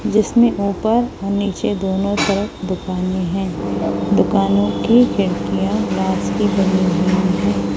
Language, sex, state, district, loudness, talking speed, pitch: Hindi, female, Chhattisgarh, Raipur, -17 LUFS, 125 wpm, 185 Hz